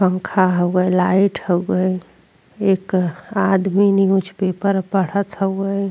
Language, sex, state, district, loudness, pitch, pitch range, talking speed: Bhojpuri, female, Uttar Pradesh, Deoria, -18 LUFS, 190 Hz, 185-195 Hz, 100 wpm